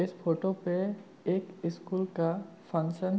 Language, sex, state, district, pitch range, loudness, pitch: Hindi, male, Jharkhand, Sahebganj, 170-190 Hz, -33 LUFS, 185 Hz